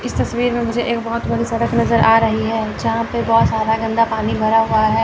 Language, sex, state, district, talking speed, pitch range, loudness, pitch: Hindi, female, Chandigarh, Chandigarh, 250 wpm, 220-230 Hz, -17 LUFS, 225 Hz